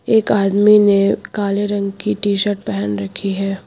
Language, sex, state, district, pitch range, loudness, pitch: Hindi, female, Uttar Pradesh, Lucknow, 195-205 Hz, -16 LUFS, 200 Hz